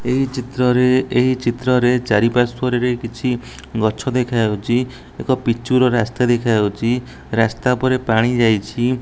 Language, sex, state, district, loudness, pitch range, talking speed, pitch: Odia, male, Odisha, Nuapada, -18 LUFS, 115-125 Hz, 120 wpm, 125 Hz